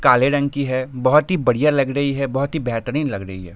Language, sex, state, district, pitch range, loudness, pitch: Hindi, male, Jharkhand, Sahebganj, 125-145 Hz, -19 LUFS, 135 Hz